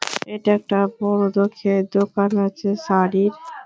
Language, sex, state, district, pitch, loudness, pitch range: Bengali, female, West Bengal, Malda, 200 Hz, -20 LUFS, 200-210 Hz